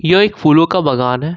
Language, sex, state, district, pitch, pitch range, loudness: Hindi, male, Jharkhand, Ranchi, 160 Hz, 145-185 Hz, -13 LUFS